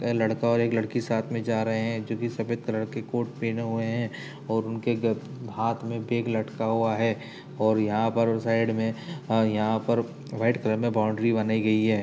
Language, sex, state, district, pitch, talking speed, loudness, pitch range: Hindi, male, Uttar Pradesh, Jyotiba Phule Nagar, 115 Hz, 220 wpm, -27 LUFS, 110-115 Hz